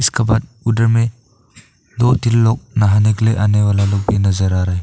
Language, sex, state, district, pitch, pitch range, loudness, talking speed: Hindi, male, Arunachal Pradesh, Papum Pare, 110 Hz, 105-115 Hz, -15 LUFS, 210 wpm